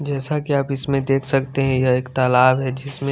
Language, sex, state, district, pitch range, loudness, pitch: Hindi, male, Chandigarh, Chandigarh, 130-140 Hz, -19 LUFS, 135 Hz